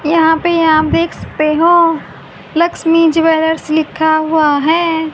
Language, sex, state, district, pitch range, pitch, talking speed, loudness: Hindi, female, Haryana, Rohtak, 315-330 Hz, 320 Hz, 130 wpm, -12 LUFS